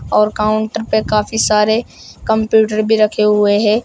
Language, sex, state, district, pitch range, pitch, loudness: Hindi, male, Uttar Pradesh, Shamli, 210-220 Hz, 215 Hz, -14 LUFS